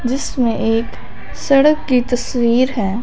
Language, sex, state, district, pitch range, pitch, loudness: Hindi, female, Punjab, Fazilka, 235-260 Hz, 245 Hz, -16 LUFS